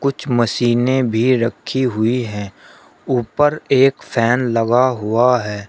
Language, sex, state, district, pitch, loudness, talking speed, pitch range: Hindi, male, Uttar Pradesh, Shamli, 120 Hz, -17 LUFS, 125 wpm, 115-130 Hz